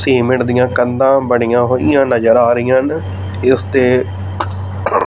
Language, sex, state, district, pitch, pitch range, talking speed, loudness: Punjabi, male, Punjab, Fazilka, 120 Hz, 100-130 Hz, 130 wpm, -14 LUFS